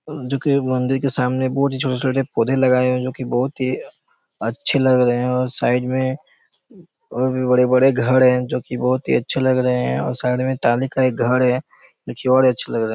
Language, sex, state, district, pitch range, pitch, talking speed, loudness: Hindi, male, Chhattisgarh, Raigarh, 125-130 Hz, 130 Hz, 230 wpm, -19 LUFS